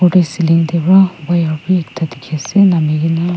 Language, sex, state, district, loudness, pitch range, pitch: Nagamese, female, Nagaland, Kohima, -13 LUFS, 160-180 Hz, 165 Hz